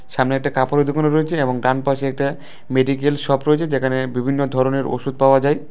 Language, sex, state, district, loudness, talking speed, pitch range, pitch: Bengali, male, Tripura, West Tripura, -19 LUFS, 180 wpm, 130-145 Hz, 135 Hz